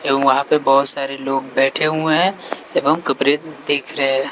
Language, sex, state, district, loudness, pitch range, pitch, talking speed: Hindi, male, Bihar, West Champaran, -16 LUFS, 135-145 Hz, 140 Hz, 195 wpm